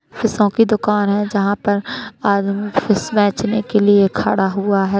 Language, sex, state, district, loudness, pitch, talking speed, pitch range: Hindi, female, Uttar Pradesh, Deoria, -17 LUFS, 205 Hz, 170 wpm, 200-215 Hz